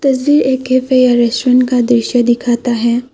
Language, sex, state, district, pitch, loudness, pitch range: Hindi, female, Assam, Kamrup Metropolitan, 250 Hz, -12 LUFS, 240-255 Hz